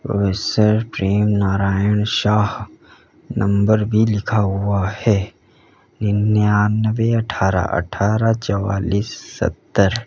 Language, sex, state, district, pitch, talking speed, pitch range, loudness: Hindi, male, Uttar Pradesh, Lalitpur, 105 Hz, 75 wpm, 100-110 Hz, -18 LUFS